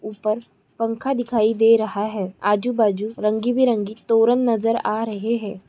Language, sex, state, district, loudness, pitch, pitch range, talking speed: Hindi, female, Chhattisgarh, Bilaspur, -21 LUFS, 225 Hz, 215-230 Hz, 135 wpm